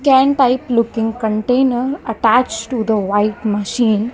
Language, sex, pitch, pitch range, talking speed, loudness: English, female, 230 Hz, 220-255 Hz, 145 wpm, -16 LUFS